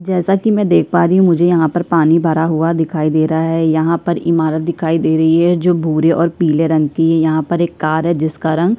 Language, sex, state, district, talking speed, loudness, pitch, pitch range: Hindi, female, Chhattisgarh, Kabirdham, 250 wpm, -14 LUFS, 165 Hz, 160-170 Hz